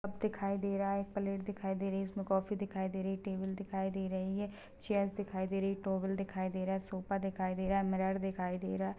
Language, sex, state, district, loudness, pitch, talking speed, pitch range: Hindi, female, Chhattisgarh, Balrampur, -37 LUFS, 195 Hz, 275 wpm, 190-195 Hz